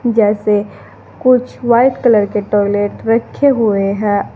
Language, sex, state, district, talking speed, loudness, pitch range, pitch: Hindi, female, Uttar Pradesh, Saharanpur, 125 wpm, -14 LUFS, 205-240 Hz, 215 Hz